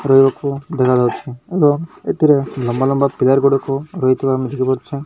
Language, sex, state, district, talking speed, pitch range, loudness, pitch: Odia, male, Odisha, Malkangiri, 105 wpm, 130-140 Hz, -16 LUFS, 135 Hz